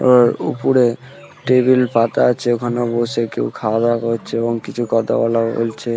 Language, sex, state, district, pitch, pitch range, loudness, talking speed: Bengali, male, West Bengal, Purulia, 115 Hz, 115-120 Hz, -17 LUFS, 170 wpm